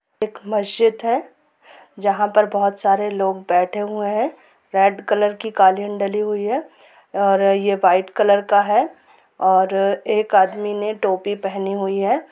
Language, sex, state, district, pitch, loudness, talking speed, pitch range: Hindi, female, Jharkhand, Sahebganj, 200 Hz, -19 LUFS, 140 wpm, 195-210 Hz